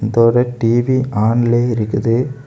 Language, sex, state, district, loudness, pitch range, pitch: Tamil, male, Tamil Nadu, Kanyakumari, -15 LUFS, 115-125 Hz, 120 Hz